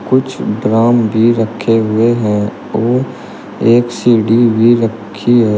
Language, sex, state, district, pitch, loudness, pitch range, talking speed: Hindi, male, Uttar Pradesh, Shamli, 115 Hz, -12 LUFS, 110-120 Hz, 130 wpm